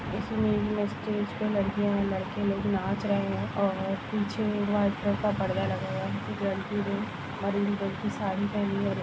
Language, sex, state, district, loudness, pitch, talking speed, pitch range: Hindi, female, Jharkhand, Jamtara, -29 LUFS, 205 Hz, 180 wpm, 195-210 Hz